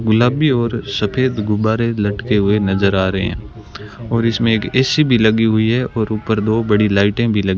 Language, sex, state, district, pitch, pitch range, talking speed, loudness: Hindi, male, Rajasthan, Bikaner, 110 Hz, 105-115 Hz, 205 wpm, -16 LUFS